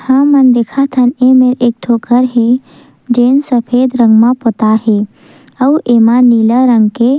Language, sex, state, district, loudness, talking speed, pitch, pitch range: Chhattisgarhi, female, Chhattisgarh, Sukma, -10 LUFS, 165 wpm, 245 Hz, 235-260 Hz